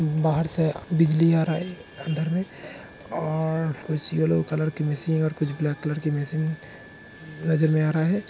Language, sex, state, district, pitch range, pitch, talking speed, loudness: Hindi, male, Uttar Pradesh, Hamirpur, 155-160 Hz, 160 Hz, 180 wpm, -25 LUFS